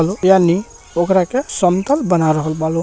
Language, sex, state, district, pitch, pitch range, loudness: Bhojpuri, male, Bihar, Gopalganj, 180 Hz, 165-190 Hz, -16 LUFS